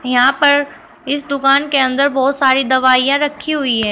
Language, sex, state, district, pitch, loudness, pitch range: Hindi, female, Uttar Pradesh, Shamli, 275 Hz, -14 LUFS, 260-285 Hz